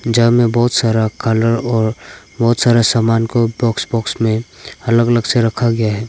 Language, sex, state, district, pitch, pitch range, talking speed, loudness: Hindi, male, Arunachal Pradesh, Papum Pare, 115 Hz, 115-120 Hz, 185 wpm, -15 LUFS